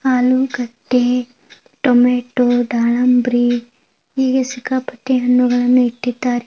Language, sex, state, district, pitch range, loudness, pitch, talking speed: Kannada, female, Karnataka, Gulbarga, 245-255 Hz, -16 LUFS, 250 Hz, 65 wpm